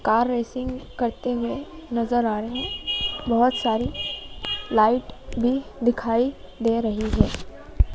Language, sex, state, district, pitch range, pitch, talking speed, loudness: Hindi, female, Madhya Pradesh, Dhar, 230-255 Hz, 240 Hz, 120 wpm, -24 LUFS